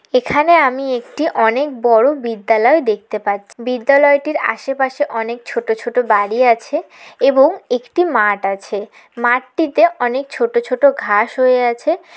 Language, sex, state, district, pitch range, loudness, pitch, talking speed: Bengali, female, West Bengal, Jalpaiguri, 230-290 Hz, -15 LUFS, 250 Hz, 130 wpm